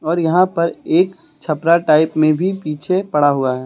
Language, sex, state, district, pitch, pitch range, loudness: Hindi, male, Uttar Pradesh, Lucknow, 160 Hz, 155-180 Hz, -16 LUFS